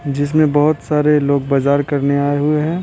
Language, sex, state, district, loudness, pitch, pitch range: Hindi, male, Bihar, Patna, -15 LUFS, 145 Hz, 140-150 Hz